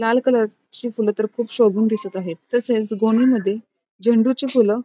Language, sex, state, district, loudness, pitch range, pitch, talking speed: Marathi, female, Maharashtra, Pune, -20 LUFS, 215-240 Hz, 225 Hz, 185 wpm